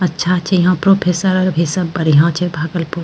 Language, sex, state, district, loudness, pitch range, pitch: Angika, female, Bihar, Bhagalpur, -15 LUFS, 170-185 Hz, 180 Hz